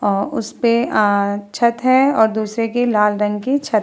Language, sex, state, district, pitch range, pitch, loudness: Hindi, female, Bihar, Vaishali, 210-240 Hz, 220 Hz, -17 LUFS